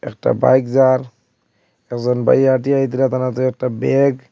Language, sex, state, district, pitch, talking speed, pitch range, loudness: Bengali, male, Assam, Hailakandi, 130 Hz, 155 wpm, 125-135 Hz, -16 LUFS